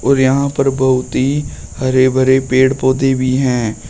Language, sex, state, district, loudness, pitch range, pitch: Hindi, male, Uttar Pradesh, Shamli, -14 LUFS, 130-135 Hz, 130 Hz